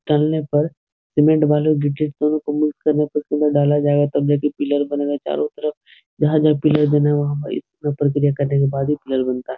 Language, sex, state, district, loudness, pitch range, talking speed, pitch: Hindi, male, Bihar, Jahanabad, -19 LUFS, 145-150 Hz, 215 wpm, 145 Hz